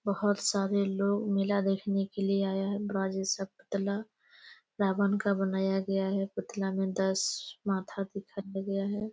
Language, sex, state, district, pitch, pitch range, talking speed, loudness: Hindi, female, Chhattisgarh, Raigarh, 195 Hz, 195-200 Hz, 150 wpm, -31 LUFS